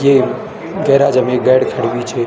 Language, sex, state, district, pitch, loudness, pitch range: Garhwali, male, Uttarakhand, Tehri Garhwal, 135 Hz, -14 LUFS, 130-140 Hz